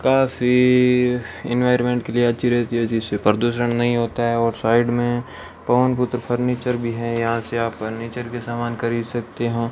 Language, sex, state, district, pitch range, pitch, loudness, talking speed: Hindi, male, Rajasthan, Bikaner, 115-125 Hz, 120 Hz, -20 LUFS, 180 wpm